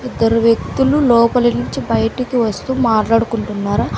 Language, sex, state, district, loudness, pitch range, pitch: Telugu, female, Andhra Pradesh, Sri Satya Sai, -15 LUFS, 215-245 Hz, 230 Hz